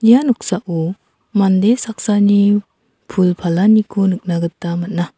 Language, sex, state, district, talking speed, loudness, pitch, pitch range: Garo, female, Meghalaya, South Garo Hills, 105 wpm, -16 LUFS, 195 Hz, 175-215 Hz